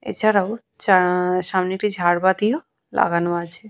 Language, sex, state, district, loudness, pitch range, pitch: Bengali, female, West Bengal, Purulia, -20 LUFS, 180-210 Hz, 185 Hz